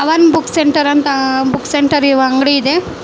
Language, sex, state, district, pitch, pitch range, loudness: Kannada, female, Karnataka, Bangalore, 285 Hz, 270-305 Hz, -12 LUFS